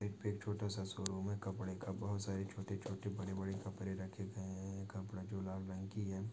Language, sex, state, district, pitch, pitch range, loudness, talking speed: Hindi, male, Maharashtra, Pune, 95 Hz, 95-100 Hz, -44 LUFS, 210 wpm